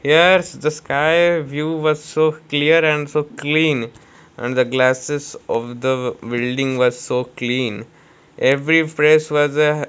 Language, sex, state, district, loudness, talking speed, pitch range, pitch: English, male, Odisha, Malkangiri, -18 LUFS, 145 wpm, 125-155 Hz, 145 Hz